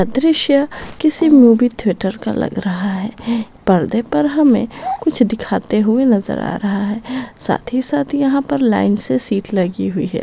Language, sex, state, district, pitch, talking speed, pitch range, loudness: Hindi, female, Maharashtra, Pune, 235 Hz, 175 wpm, 200-280 Hz, -16 LUFS